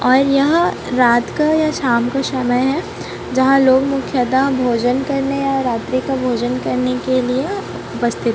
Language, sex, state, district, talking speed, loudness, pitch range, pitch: Hindi, female, Chhattisgarh, Raipur, 160 wpm, -17 LUFS, 245-275 Hz, 260 Hz